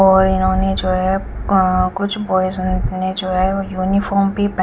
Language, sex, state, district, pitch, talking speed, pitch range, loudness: Hindi, female, Chandigarh, Chandigarh, 190 Hz, 170 wpm, 185-195 Hz, -17 LUFS